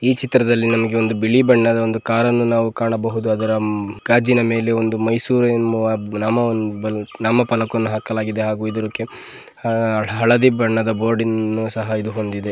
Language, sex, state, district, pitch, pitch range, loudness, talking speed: Kannada, male, Karnataka, Mysore, 115 Hz, 110-115 Hz, -18 LUFS, 115 wpm